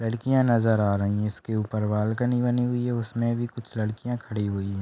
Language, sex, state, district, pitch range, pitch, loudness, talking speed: Hindi, male, Maharashtra, Solapur, 105-120 Hz, 115 Hz, -26 LUFS, 225 wpm